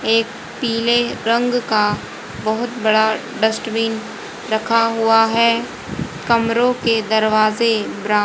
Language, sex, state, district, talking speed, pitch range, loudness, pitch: Hindi, female, Haryana, Rohtak, 100 wpm, 220-235 Hz, -18 LUFS, 225 Hz